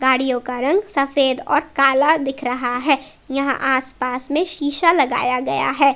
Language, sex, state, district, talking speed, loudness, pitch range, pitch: Hindi, female, Jharkhand, Palamu, 170 wpm, -18 LUFS, 260-290 Hz, 275 Hz